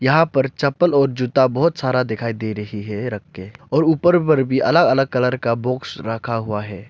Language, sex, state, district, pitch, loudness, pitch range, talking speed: Hindi, male, Arunachal Pradesh, Lower Dibang Valley, 125 Hz, -19 LUFS, 110-140 Hz, 215 wpm